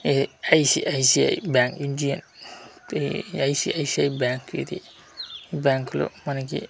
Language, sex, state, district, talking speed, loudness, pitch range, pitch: Telugu, male, Andhra Pradesh, Manyam, 100 wpm, -23 LUFS, 130-145 Hz, 140 Hz